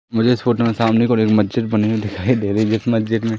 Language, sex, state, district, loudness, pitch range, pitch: Hindi, female, Madhya Pradesh, Umaria, -17 LUFS, 110-115 Hz, 115 Hz